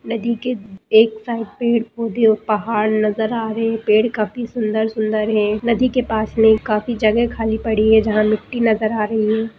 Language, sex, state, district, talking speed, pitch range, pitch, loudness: Hindi, female, Bihar, Madhepura, 190 wpm, 215-230 Hz, 220 Hz, -18 LUFS